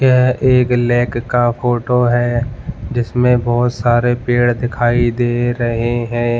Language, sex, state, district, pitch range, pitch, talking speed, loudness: Hindi, male, Jharkhand, Jamtara, 120-125 Hz, 120 Hz, 130 wpm, -15 LUFS